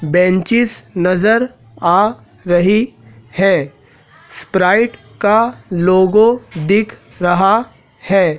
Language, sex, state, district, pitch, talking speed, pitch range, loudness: Hindi, male, Madhya Pradesh, Dhar, 185 Hz, 80 wpm, 160-220 Hz, -14 LUFS